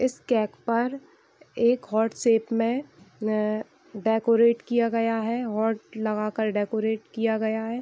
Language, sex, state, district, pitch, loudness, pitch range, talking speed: Hindi, female, Bihar, East Champaran, 225 Hz, -25 LUFS, 220-235 Hz, 140 wpm